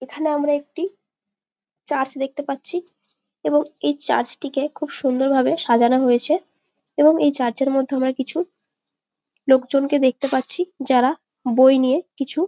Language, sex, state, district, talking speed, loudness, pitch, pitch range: Bengali, female, West Bengal, Jalpaiguri, 140 wpm, -20 LUFS, 275 Hz, 260-305 Hz